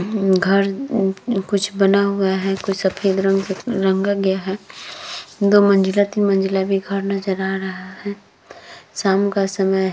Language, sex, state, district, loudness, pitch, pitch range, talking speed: Hindi, female, Uttar Pradesh, Hamirpur, -19 LUFS, 195 Hz, 190-200 Hz, 165 wpm